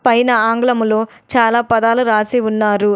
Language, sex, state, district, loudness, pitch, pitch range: Telugu, female, Telangana, Adilabad, -14 LUFS, 230 Hz, 220-240 Hz